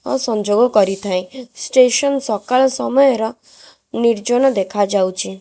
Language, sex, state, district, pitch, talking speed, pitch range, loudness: Odia, female, Odisha, Khordha, 235 Hz, 90 wpm, 205-260 Hz, -16 LUFS